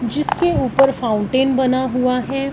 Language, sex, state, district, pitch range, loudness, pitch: Hindi, female, Punjab, Fazilka, 250-275 Hz, -17 LUFS, 260 Hz